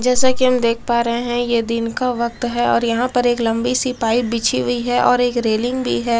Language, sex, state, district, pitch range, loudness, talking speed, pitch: Hindi, female, Delhi, New Delhi, 230-245 Hz, -18 LUFS, 260 wpm, 235 Hz